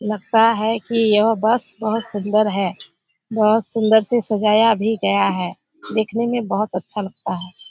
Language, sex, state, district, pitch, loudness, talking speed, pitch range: Hindi, female, Bihar, Kishanganj, 215 Hz, -19 LUFS, 165 wpm, 205-225 Hz